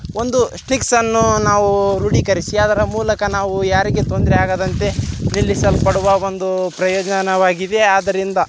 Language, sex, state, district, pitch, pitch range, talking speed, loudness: Kannada, male, Karnataka, Raichur, 195 Hz, 190-210 Hz, 105 wpm, -16 LUFS